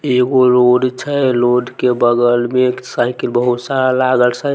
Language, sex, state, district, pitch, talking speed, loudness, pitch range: Maithili, male, Bihar, Samastipur, 125 Hz, 170 wpm, -14 LUFS, 120-130 Hz